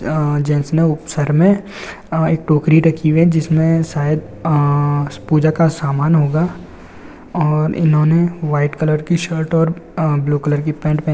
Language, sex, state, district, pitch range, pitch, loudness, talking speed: Hindi, male, Andhra Pradesh, Visakhapatnam, 150-165 Hz, 155 Hz, -16 LUFS, 155 wpm